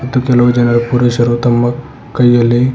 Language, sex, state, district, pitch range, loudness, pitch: Kannada, male, Karnataka, Bidar, 120-125 Hz, -11 LUFS, 120 Hz